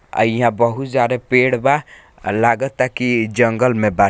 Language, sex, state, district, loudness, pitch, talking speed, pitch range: Hindi, male, Bihar, Gopalganj, -17 LUFS, 120 Hz, 160 wpm, 115-125 Hz